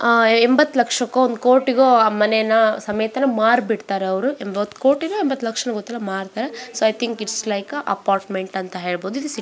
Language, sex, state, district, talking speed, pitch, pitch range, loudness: Kannada, female, Karnataka, Belgaum, 160 wpm, 225 Hz, 205-250 Hz, -19 LUFS